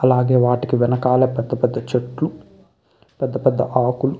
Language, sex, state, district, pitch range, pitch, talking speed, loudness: Telugu, male, Andhra Pradesh, Krishna, 125-130 Hz, 125 Hz, 140 wpm, -19 LUFS